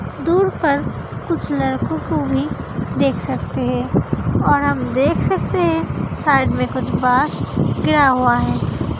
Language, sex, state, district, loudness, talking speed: Hindi, female, Uttar Pradesh, Hamirpur, -18 LUFS, 140 wpm